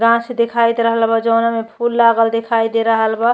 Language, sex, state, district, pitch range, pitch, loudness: Bhojpuri, female, Uttar Pradesh, Ghazipur, 225-235 Hz, 230 Hz, -15 LUFS